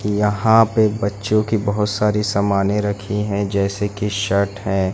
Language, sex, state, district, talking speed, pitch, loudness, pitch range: Hindi, male, Madhya Pradesh, Umaria, 160 wpm, 105 Hz, -19 LUFS, 100-105 Hz